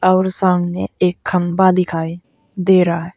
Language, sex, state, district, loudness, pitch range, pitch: Hindi, female, Uttar Pradesh, Saharanpur, -16 LUFS, 170-185 Hz, 180 Hz